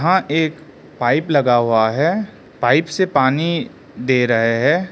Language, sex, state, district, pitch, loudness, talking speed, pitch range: Hindi, male, Arunachal Pradesh, Lower Dibang Valley, 140 Hz, -17 LUFS, 135 wpm, 120-165 Hz